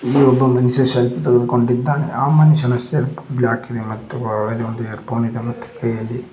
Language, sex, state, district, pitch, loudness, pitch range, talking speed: Kannada, male, Karnataka, Koppal, 125 Hz, -18 LUFS, 115-130 Hz, 170 wpm